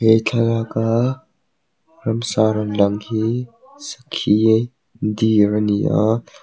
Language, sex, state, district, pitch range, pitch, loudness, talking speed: Mizo, male, Mizoram, Aizawl, 105-120 Hz, 115 Hz, -19 LUFS, 110 wpm